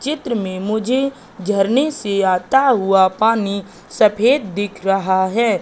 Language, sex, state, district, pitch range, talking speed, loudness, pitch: Hindi, female, Madhya Pradesh, Katni, 195-250 Hz, 130 wpm, -17 LUFS, 210 Hz